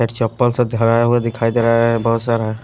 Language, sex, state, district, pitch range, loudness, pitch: Hindi, male, Haryana, Rohtak, 115-120 Hz, -16 LUFS, 115 Hz